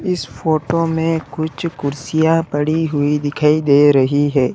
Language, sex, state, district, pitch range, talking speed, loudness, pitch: Hindi, male, Uttar Pradesh, Lalitpur, 145-160 Hz, 145 wpm, -16 LUFS, 150 Hz